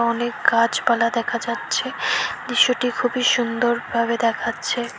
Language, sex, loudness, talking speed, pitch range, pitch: Bengali, female, -20 LUFS, 95 wpm, 235-240 Hz, 235 Hz